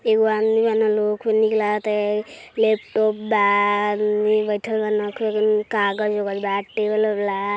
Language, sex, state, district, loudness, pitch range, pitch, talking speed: Hindi, male, Uttar Pradesh, Deoria, -20 LUFS, 205-220 Hz, 210 Hz, 30 wpm